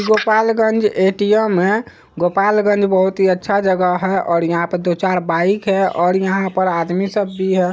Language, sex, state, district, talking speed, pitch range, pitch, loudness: Hindi, male, Bihar, Araria, 180 wpm, 180-205 Hz, 190 Hz, -16 LUFS